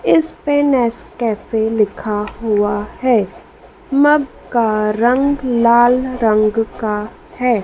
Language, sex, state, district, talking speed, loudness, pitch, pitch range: Hindi, female, Madhya Pradesh, Dhar, 100 wpm, -16 LUFS, 235 Hz, 215-255 Hz